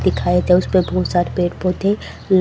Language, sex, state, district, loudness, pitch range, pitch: Hindi, female, Haryana, Charkhi Dadri, -18 LUFS, 180-185 Hz, 180 Hz